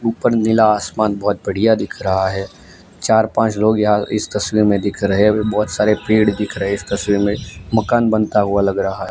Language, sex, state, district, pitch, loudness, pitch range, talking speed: Hindi, male, Gujarat, Gandhinagar, 105 Hz, -17 LUFS, 100-110 Hz, 210 wpm